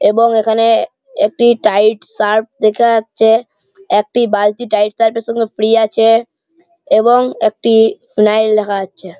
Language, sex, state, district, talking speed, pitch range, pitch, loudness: Bengali, male, West Bengal, Malda, 125 wpm, 215-235 Hz, 225 Hz, -13 LUFS